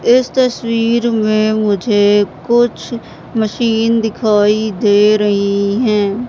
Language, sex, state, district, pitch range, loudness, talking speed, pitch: Hindi, female, Madhya Pradesh, Katni, 205-230 Hz, -13 LUFS, 95 wpm, 220 Hz